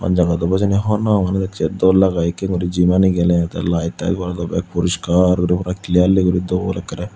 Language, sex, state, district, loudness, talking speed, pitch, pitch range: Chakma, male, Tripura, Dhalai, -17 LUFS, 220 wpm, 90 Hz, 85-95 Hz